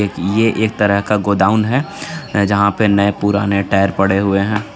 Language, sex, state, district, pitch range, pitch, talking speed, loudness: Hindi, male, Jharkhand, Garhwa, 100-105 Hz, 100 Hz, 165 wpm, -15 LUFS